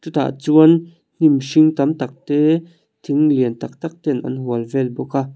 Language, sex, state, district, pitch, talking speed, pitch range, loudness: Mizo, male, Mizoram, Aizawl, 150 Hz, 190 wpm, 135-160 Hz, -17 LUFS